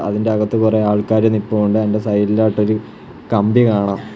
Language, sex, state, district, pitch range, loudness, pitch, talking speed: Malayalam, male, Kerala, Kollam, 105-110 Hz, -16 LUFS, 105 Hz, 130 wpm